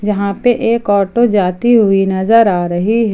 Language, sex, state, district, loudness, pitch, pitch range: Hindi, female, Jharkhand, Ranchi, -12 LUFS, 205 Hz, 195-230 Hz